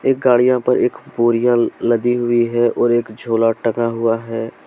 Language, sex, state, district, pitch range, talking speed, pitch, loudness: Hindi, male, Jharkhand, Deoghar, 115-120 Hz, 180 wpm, 120 Hz, -17 LUFS